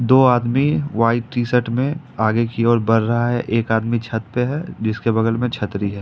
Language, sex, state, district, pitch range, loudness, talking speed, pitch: Hindi, male, Jharkhand, Ranchi, 115-125 Hz, -19 LUFS, 210 wpm, 115 Hz